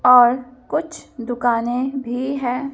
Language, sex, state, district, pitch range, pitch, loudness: Hindi, female, Madhya Pradesh, Bhopal, 245-270 Hz, 250 Hz, -20 LUFS